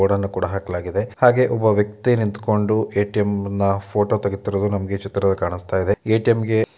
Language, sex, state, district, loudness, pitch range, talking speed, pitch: Kannada, male, Karnataka, Dakshina Kannada, -20 LUFS, 100-110 Hz, 160 wpm, 100 Hz